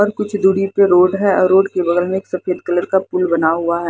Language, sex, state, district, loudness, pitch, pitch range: Hindi, female, Haryana, Jhajjar, -15 LUFS, 185 Hz, 175-195 Hz